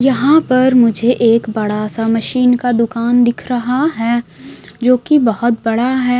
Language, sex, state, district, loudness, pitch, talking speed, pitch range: Hindi, female, Bihar, West Champaran, -14 LUFS, 240 Hz, 165 wpm, 225-255 Hz